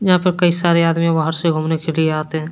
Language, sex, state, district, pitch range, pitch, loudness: Hindi, male, Jharkhand, Deoghar, 160-175 Hz, 165 Hz, -17 LUFS